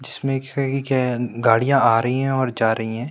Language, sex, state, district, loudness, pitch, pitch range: Hindi, male, Madhya Pradesh, Bhopal, -20 LUFS, 130 Hz, 115-135 Hz